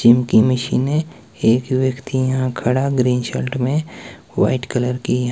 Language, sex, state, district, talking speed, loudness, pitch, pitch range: Hindi, male, Himachal Pradesh, Shimla, 145 wpm, -18 LUFS, 130 Hz, 125-130 Hz